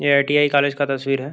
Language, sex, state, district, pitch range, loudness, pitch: Hindi, male, Uttar Pradesh, Gorakhpur, 135-145 Hz, -18 LUFS, 140 Hz